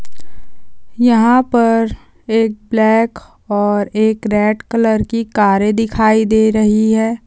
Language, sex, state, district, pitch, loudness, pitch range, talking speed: Hindi, female, Bihar, Kishanganj, 220 Hz, -14 LUFS, 215-230 Hz, 115 wpm